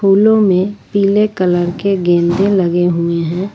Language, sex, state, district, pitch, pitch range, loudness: Hindi, female, Jharkhand, Ranchi, 185 Hz, 175-200 Hz, -13 LUFS